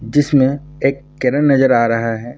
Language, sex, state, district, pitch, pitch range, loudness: Hindi, male, Bihar, Purnia, 135 Hz, 120-145 Hz, -15 LUFS